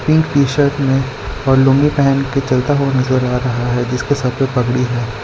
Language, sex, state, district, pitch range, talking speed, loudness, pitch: Hindi, male, Gujarat, Valsad, 125-140 Hz, 205 wpm, -15 LUFS, 135 Hz